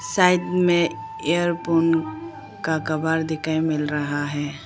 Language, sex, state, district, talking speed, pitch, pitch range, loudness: Hindi, female, Arunachal Pradesh, Lower Dibang Valley, 115 wpm, 160 Hz, 150-170 Hz, -22 LUFS